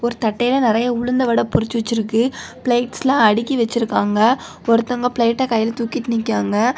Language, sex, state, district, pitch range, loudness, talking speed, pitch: Tamil, female, Tamil Nadu, Kanyakumari, 225-245 Hz, -18 LUFS, 115 wpm, 235 Hz